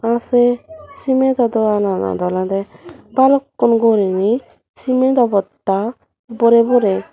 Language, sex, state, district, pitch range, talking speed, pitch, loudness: Chakma, female, Tripura, Dhalai, 200-255 Hz, 100 wpm, 235 Hz, -16 LUFS